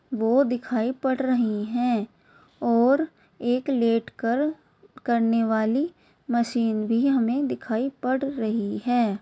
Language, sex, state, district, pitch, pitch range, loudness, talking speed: Hindi, female, Bihar, Begusarai, 240 Hz, 230-265 Hz, -24 LUFS, 115 wpm